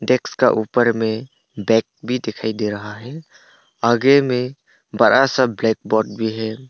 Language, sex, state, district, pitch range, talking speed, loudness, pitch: Hindi, male, Arunachal Pradesh, Papum Pare, 110-130 Hz, 150 wpm, -18 LUFS, 115 Hz